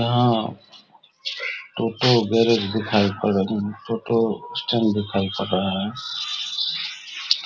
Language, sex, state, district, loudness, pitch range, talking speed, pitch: Hindi, male, Bihar, Vaishali, -22 LUFS, 100-115 Hz, 105 wpm, 110 Hz